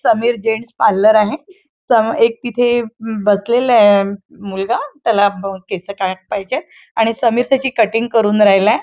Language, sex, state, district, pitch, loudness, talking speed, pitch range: Marathi, female, Maharashtra, Chandrapur, 225 Hz, -15 LUFS, 140 wpm, 205-240 Hz